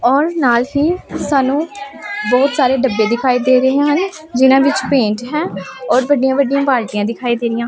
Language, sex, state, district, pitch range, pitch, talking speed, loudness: Punjabi, female, Punjab, Pathankot, 240-290 Hz, 265 Hz, 170 wpm, -15 LUFS